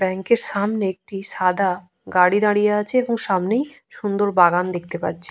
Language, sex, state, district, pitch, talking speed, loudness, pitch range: Bengali, female, Jharkhand, Jamtara, 200 Hz, 160 wpm, -20 LUFS, 185-210 Hz